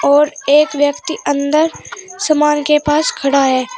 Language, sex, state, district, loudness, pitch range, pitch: Hindi, female, Uttar Pradesh, Shamli, -14 LUFS, 280-305 Hz, 295 Hz